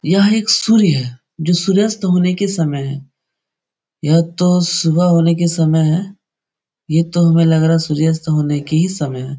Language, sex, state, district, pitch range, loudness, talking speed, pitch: Hindi, male, Bihar, Supaul, 155-180 Hz, -15 LUFS, 185 wpm, 165 Hz